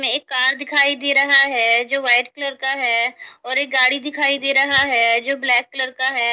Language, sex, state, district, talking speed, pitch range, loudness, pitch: Hindi, female, Haryana, Charkhi Dadri, 235 wpm, 245-280 Hz, -16 LUFS, 270 Hz